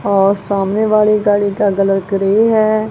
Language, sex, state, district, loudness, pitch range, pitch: Hindi, female, Punjab, Kapurthala, -14 LUFS, 195-215 Hz, 205 Hz